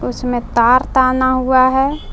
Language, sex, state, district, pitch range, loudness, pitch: Hindi, female, Jharkhand, Palamu, 250-260 Hz, -14 LUFS, 255 Hz